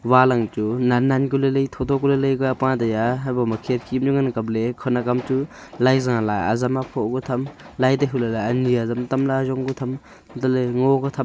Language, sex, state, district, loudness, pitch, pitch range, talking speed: Wancho, male, Arunachal Pradesh, Longding, -21 LUFS, 130 Hz, 125-135 Hz, 255 wpm